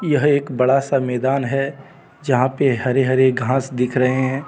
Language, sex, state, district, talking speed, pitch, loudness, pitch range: Hindi, male, Jharkhand, Deoghar, 185 wpm, 135 Hz, -18 LUFS, 130-140 Hz